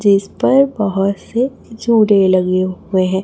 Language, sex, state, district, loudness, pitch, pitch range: Hindi, female, Chhattisgarh, Raipur, -15 LUFS, 200 Hz, 190-225 Hz